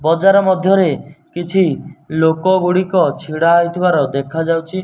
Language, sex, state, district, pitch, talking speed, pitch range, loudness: Odia, male, Odisha, Nuapada, 170 Hz, 110 wpm, 160-185 Hz, -15 LUFS